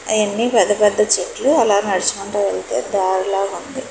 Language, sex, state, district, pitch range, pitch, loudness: Telugu, female, Telangana, Hyderabad, 195-215 Hz, 205 Hz, -17 LUFS